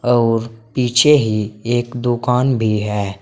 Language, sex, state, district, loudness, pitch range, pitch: Hindi, male, Uttar Pradesh, Saharanpur, -17 LUFS, 110-125 Hz, 120 Hz